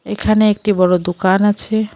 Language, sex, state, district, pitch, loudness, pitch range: Bengali, female, West Bengal, Alipurduar, 205 Hz, -15 LUFS, 185-215 Hz